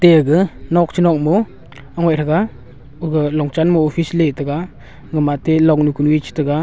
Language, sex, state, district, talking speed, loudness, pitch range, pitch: Wancho, male, Arunachal Pradesh, Longding, 170 wpm, -16 LUFS, 145-165 Hz, 155 Hz